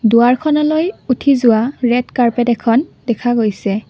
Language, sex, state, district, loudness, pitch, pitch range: Assamese, female, Assam, Kamrup Metropolitan, -15 LUFS, 240 Hz, 230-265 Hz